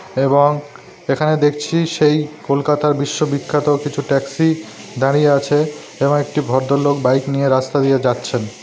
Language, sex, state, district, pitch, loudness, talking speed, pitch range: Bengali, male, West Bengal, North 24 Parganas, 145 Hz, -17 LUFS, 130 wpm, 135-150 Hz